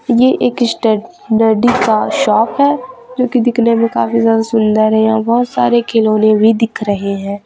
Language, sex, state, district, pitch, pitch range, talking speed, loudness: Hindi, female, Chhattisgarh, Raipur, 230 Hz, 220-245 Hz, 175 wpm, -13 LUFS